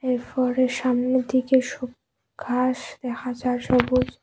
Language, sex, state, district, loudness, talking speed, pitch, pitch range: Bengali, female, Assam, Hailakandi, -23 LUFS, 125 wpm, 255 Hz, 250-255 Hz